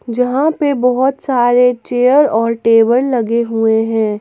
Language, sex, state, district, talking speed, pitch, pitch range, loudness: Hindi, female, Jharkhand, Garhwa, 140 wpm, 245 Hz, 230-260 Hz, -13 LUFS